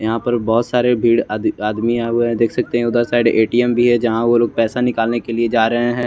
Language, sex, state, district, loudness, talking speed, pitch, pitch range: Hindi, male, Chandigarh, Chandigarh, -16 LUFS, 275 wpm, 120 Hz, 115-120 Hz